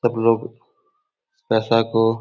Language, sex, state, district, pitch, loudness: Hindi, male, Uttar Pradesh, Etah, 120 Hz, -20 LUFS